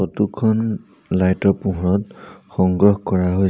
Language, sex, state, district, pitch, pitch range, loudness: Assamese, male, Assam, Sonitpur, 95 Hz, 95-105 Hz, -19 LUFS